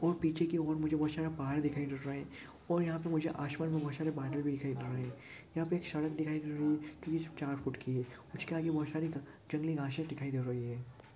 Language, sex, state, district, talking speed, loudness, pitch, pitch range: Hindi, male, Chhattisgarh, Jashpur, 265 wpm, -37 LUFS, 150 Hz, 140-160 Hz